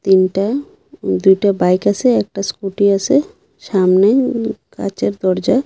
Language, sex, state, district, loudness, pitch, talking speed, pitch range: Bengali, female, Assam, Hailakandi, -15 LUFS, 200 Hz, 115 wpm, 190-260 Hz